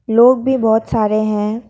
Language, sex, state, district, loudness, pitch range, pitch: Hindi, female, Assam, Kamrup Metropolitan, -15 LUFS, 215-240 Hz, 225 Hz